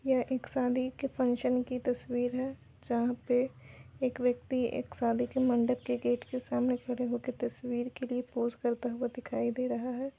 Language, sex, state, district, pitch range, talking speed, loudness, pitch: Hindi, female, Uttar Pradesh, Budaun, 245-255 Hz, 195 wpm, -33 LUFS, 250 Hz